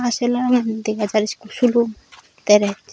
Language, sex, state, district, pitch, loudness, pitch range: Chakma, female, Tripura, Dhalai, 220 Hz, -19 LUFS, 215-245 Hz